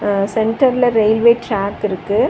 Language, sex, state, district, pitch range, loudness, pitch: Tamil, female, Tamil Nadu, Chennai, 200-235 Hz, -15 LUFS, 220 Hz